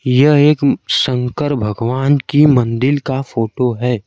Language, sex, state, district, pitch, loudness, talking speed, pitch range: Hindi, male, Bihar, Kaimur, 130 Hz, -14 LUFS, 135 wpm, 125-145 Hz